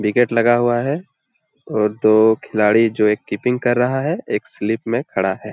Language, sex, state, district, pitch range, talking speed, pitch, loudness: Hindi, male, Jharkhand, Jamtara, 105-120 Hz, 195 wpm, 115 Hz, -18 LUFS